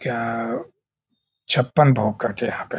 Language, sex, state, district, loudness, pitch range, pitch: Hindi, male, Bihar, Jahanabad, -21 LUFS, 115-130 Hz, 125 Hz